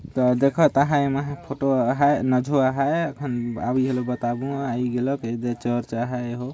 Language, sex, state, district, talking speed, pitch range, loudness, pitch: Sadri, male, Chhattisgarh, Jashpur, 175 wpm, 120-140 Hz, -23 LUFS, 130 Hz